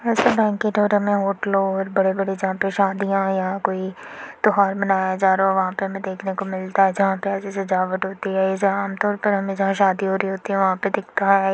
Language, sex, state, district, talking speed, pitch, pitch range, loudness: Hindi, female, Uttar Pradesh, Jyotiba Phule Nagar, 215 wpm, 195 Hz, 190-200 Hz, -21 LUFS